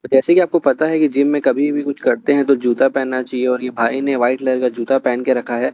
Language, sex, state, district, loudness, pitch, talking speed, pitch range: Hindi, male, Chhattisgarh, Raipur, -16 LUFS, 130 Hz, 295 wpm, 125-145 Hz